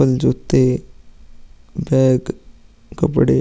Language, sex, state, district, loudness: Hindi, male, Bihar, Vaishali, -17 LUFS